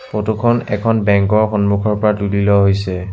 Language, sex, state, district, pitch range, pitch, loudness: Assamese, male, Assam, Sonitpur, 100-110 Hz, 105 Hz, -15 LUFS